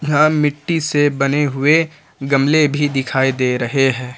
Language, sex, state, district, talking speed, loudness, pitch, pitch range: Hindi, male, Jharkhand, Ranchi, 170 wpm, -16 LUFS, 145 Hz, 135-150 Hz